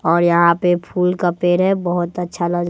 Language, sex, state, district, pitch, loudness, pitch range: Hindi, male, Bihar, West Champaran, 175 Hz, -17 LUFS, 170-180 Hz